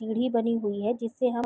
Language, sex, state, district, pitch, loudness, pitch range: Hindi, female, Chhattisgarh, Raigarh, 230 Hz, -28 LUFS, 220-240 Hz